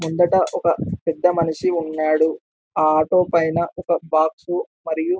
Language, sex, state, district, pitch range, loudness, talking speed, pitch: Telugu, male, Telangana, Karimnagar, 155-175 Hz, -20 LUFS, 140 wpm, 165 Hz